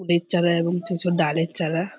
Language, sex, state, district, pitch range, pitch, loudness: Bengali, female, West Bengal, Purulia, 165-175 Hz, 170 Hz, -22 LUFS